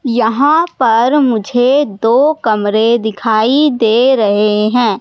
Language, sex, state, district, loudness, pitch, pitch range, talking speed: Hindi, female, Madhya Pradesh, Katni, -12 LUFS, 235 Hz, 220-265 Hz, 110 wpm